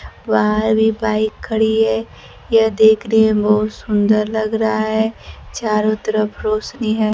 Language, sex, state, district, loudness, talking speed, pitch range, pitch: Hindi, female, Bihar, Kaimur, -17 LUFS, 150 wpm, 215-220 Hz, 220 Hz